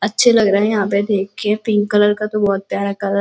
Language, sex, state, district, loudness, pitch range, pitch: Hindi, female, Uttar Pradesh, Gorakhpur, -16 LUFS, 200-210 Hz, 205 Hz